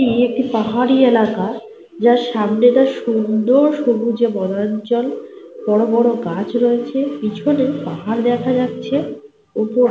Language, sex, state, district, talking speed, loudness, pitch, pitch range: Bengali, female, Jharkhand, Sahebganj, 110 wpm, -17 LUFS, 240 Hz, 220-255 Hz